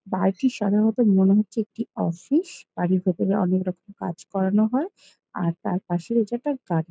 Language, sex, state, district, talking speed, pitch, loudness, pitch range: Bengali, female, West Bengal, Jalpaiguri, 175 wpm, 200 Hz, -24 LUFS, 185-230 Hz